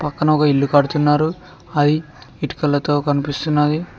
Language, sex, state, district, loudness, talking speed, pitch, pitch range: Telugu, male, Telangana, Mahabubabad, -18 LUFS, 105 wpm, 150 Hz, 145-155 Hz